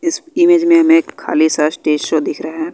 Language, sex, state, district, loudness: Hindi, female, Bihar, West Champaran, -14 LUFS